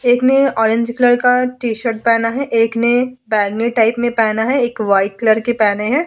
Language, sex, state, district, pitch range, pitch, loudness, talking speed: Hindi, female, Bihar, Vaishali, 220-245 Hz, 235 Hz, -15 LUFS, 215 wpm